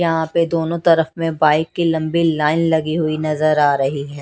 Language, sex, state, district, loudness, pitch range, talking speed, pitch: Hindi, female, Odisha, Nuapada, -17 LUFS, 155-165 Hz, 210 wpm, 160 Hz